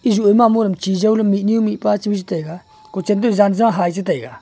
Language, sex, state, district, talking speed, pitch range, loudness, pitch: Wancho, male, Arunachal Pradesh, Longding, 205 wpm, 195-220 Hz, -16 LUFS, 210 Hz